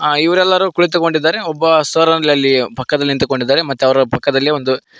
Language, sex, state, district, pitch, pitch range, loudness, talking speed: Kannada, male, Karnataka, Koppal, 150 Hz, 135-165 Hz, -14 LUFS, 155 wpm